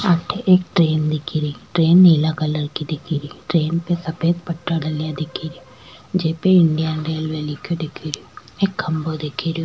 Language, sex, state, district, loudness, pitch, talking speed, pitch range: Rajasthani, female, Rajasthan, Churu, -20 LUFS, 160 Hz, 175 wpm, 155-170 Hz